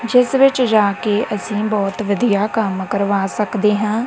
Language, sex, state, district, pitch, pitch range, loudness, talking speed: Punjabi, female, Punjab, Kapurthala, 210 Hz, 200-225 Hz, -17 LUFS, 160 wpm